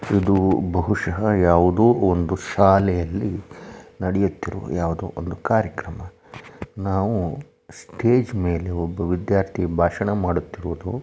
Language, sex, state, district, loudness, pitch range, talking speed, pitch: Kannada, male, Karnataka, Shimoga, -21 LUFS, 85-100 Hz, 85 wpm, 95 Hz